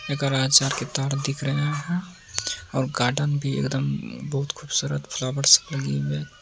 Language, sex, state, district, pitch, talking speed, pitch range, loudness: Hindi, male, Uttar Pradesh, Jyotiba Phule Nagar, 135 Hz, 140 wpm, 105-140 Hz, -23 LUFS